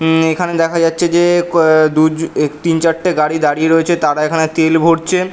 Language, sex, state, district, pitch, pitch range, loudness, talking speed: Bengali, male, West Bengal, North 24 Parganas, 160 Hz, 155-170 Hz, -13 LUFS, 180 wpm